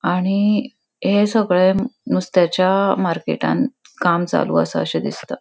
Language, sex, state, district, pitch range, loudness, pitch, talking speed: Konkani, female, Goa, North and South Goa, 175-210 Hz, -18 LUFS, 190 Hz, 110 wpm